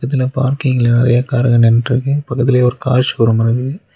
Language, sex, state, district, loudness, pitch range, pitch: Tamil, male, Tamil Nadu, Nilgiris, -14 LUFS, 120-130 Hz, 125 Hz